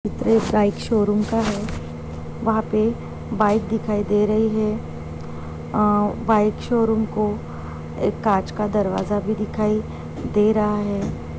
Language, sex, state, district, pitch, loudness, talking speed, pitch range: Hindi, female, Maharashtra, Dhule, 210 Hz, -21 LUFS, 130 wpm, 190-215 Hz